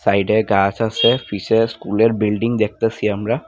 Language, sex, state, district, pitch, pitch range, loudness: Bengali, male, Tripura, Unakoti, 110 Hz, 105-115 Hz, -18 LUFS